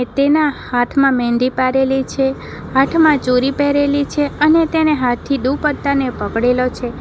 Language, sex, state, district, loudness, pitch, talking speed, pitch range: Gujarati, female, Gujarat, Valsad, -16 LUFS, 270 Hz, 135 wpm, 250-285 Hz